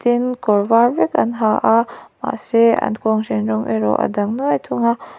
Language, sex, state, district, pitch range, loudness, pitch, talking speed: Mizo, female, Mizoram, Aizawl, 185-235 Hz, -17 LUFS, 225 Hz, 195 wpm